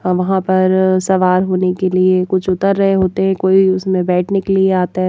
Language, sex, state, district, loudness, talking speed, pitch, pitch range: Hindi, female, Haryana, Jhajjar, -14 LUFS, 210 wpm, 185 Hz, 185-190 Hz